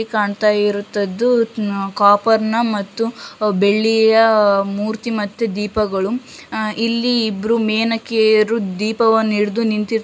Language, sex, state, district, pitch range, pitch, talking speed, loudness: Kannada, female, Karnataka, Shimoga, 205-225 Hz, 220 Hz, 95 wpm, -17 LUFS